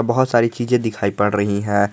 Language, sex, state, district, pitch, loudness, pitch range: Hindi, male, Jharkhand, Garhwa, 110 Hz, -18 LUFS, 100-120 Hz